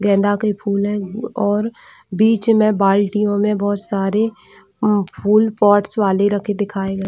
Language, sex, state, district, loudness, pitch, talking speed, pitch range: Hindi, female, Chhattisgarh, Bilaspur, -17 LUFS, 205 Hz, 135 wpm, 200-215 Hz